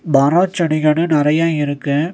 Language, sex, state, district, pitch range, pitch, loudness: Tamil, male, Tamil Nadu, Nilgiris, 145-165 Hz, 155 Hz, -15 LUFS